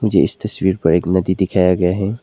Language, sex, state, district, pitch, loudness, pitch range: Hindi, male, Arunachal Pradesh, Lower Dibang Valley, 95 Hz, -16 LUFS, 90-95 Hz